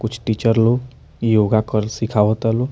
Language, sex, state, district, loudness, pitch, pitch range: Bhojpuri, male, Bihar, Muzaffarpur, -18 LUFS, 115 Hz, 110-115 Hz